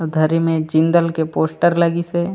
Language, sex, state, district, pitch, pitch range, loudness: Chhattisgarhi, male, Chhattisgarh, Raigarh, 165 Hz, 160-170 Hz, -17 LUFS